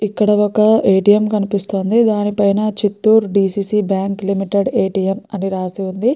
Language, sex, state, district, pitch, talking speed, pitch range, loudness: Telugu, female, Andhra Pradesh, Chittoor, 200 Hz, 155 wpm, 195-210 Hz, -16 LUFS